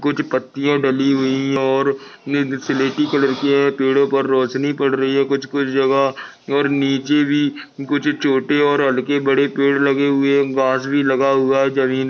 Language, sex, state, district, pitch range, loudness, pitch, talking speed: Hindi, male, Maharashtra, Nagpur, 135-140 Hz, -17 LUFS, 140 Hz, 175 wpm